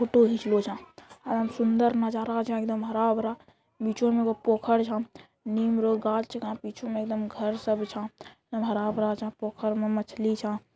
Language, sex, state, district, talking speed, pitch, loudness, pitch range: Angika, female, Bihar, Bhagalpur, 180 wpm, 220 Hz, -28 LUFS, 215-230 Hz